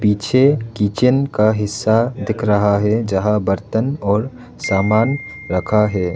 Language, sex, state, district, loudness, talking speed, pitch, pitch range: Hindi, male, Arunachal Pradesh, Lower Dibang Valley, -17 LUFS, 125 wpm, 105 Hz, 100-115 Hz